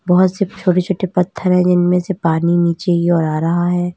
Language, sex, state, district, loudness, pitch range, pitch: Hindi, female, Uttar Pradesh, Lalitpur, -16 LUFS, 170-185 Hz, 180 Hz